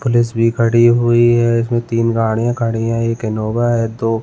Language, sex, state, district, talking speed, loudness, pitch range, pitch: Hindi, male, Chhattisgarh, Balrampur, 210 wpm, -15 LUFS, 115-120 Hz, 115 Hz